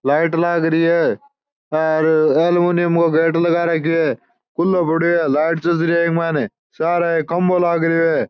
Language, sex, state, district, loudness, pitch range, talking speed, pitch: Marwari, male, Rajasthan, Churu, -17 LUFS, 165-170 Hz, 190 wpm, 170 Hz